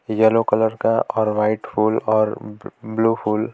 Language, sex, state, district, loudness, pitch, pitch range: Hindi, male, Jharkhand, Palamu, -19 LUFS, 110 Hz, 105-110 Hz